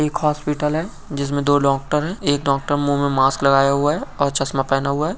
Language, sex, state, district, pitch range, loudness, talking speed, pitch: Hindi, male, Bihar, Saran, 140-150 Hz, -19 LUFS, 230 wpm, 145 Hz